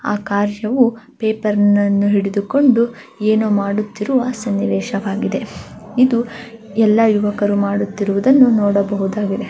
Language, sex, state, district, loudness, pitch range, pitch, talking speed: Kannada, female, Karnataka, Dakshina Kannada, -16 LUFS, 200-230 Hz, 210 Hz, 95 wpm